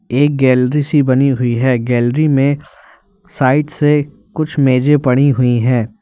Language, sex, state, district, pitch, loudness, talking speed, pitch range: Hindi, male, Uttar Pradesh, Lalitpur, 135 Hz, -13 LUFS, 150 wpm, 125-150 Hz